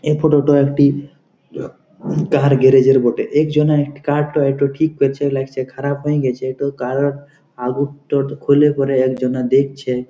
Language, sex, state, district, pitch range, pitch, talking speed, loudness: Bengali, male, West Bengal, Jhargram, 135-145 Hz, 140 Hz, 125 wpm, -16 LUFS